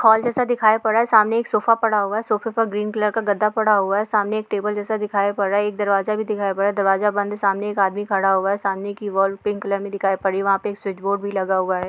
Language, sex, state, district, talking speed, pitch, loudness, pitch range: Hindi, female, Bihar, Darbhanga, 300 wpm, 205 Hz, -20 LUFS, 195-215 Hz